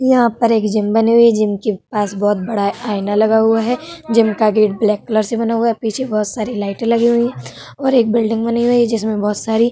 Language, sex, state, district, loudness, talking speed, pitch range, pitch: Hindi, female, Uttar Pradesh, Hamirpur, -16 LUFS, 260 wpm, 210-235 Hz, 225 Hz